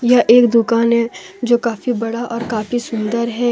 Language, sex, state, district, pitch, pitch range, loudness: Hindi, female, Jharkhand, Deoghar, 235 Hz, 230-240 Hz, -16 LUFS